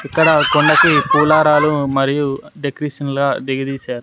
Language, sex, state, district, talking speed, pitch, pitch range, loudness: Telugu, male, Andhra Pradesh, Sri Satya Sai, 105 wpm, 145 Hz, 135-150 Hz, -15 LUFS